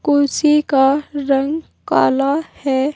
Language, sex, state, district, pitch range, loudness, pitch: Hindi, female, Uttar Pradesh, Saharanpur, 275-300 Hz, -17 LUFS, 285 Hz